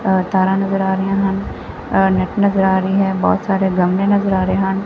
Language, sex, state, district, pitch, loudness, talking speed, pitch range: Punjabi, female, Punjab, Fazilka, 190 Hz, -16 LUFS, 235 wpm, 190-195 Hz